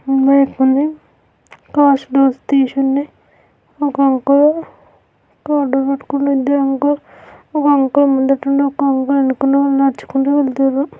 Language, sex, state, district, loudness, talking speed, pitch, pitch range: Telugu, female, Telangana, Karimnagar, -15 LUFS, 75 wpm, 275 Hz, 270-285 Hz